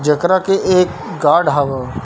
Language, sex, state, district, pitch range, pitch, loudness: Hindi, male, Bihar, Darbhanga, 140-185 Hz, 150 Hz, -15 LUFS